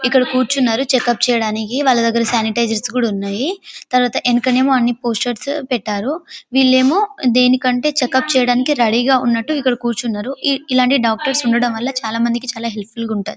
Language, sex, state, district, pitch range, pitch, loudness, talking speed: Telugu, female, Telangana, Karimnagar, 230-260 Hz, 250 Hz, -16 LUFS, 150 wpm